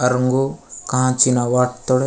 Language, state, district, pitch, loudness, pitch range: Gondi, Chhattisgarh, Sukma, 125 Hz, -17 LUFS, 125-130 Hz